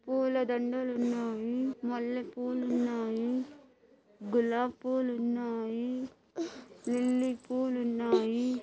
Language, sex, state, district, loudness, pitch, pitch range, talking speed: Telugu, female, Andhra Pradesh, Anantapur, -32 LUFS, 245 Hz, 235-255 Hz, 75 wpm